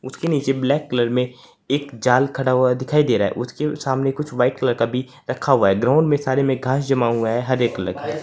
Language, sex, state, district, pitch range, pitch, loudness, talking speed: Hindi, male, Uttar Pradesh, Saharanpur, 125-140 Hz, 130 Hz, -20 LUFS, 245 wpm